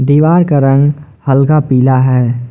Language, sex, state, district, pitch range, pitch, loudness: Hindi, male, Jharkhand, Garhwa, 130-145 Hz, 135 Hz, -10 LUFS